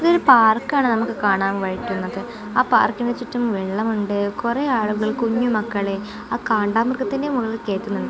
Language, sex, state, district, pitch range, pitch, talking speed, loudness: Malayalam, female, Kerala, Kozhikode, 205-240 Hz, 225 Hz, 125 wpm, -20 LUFS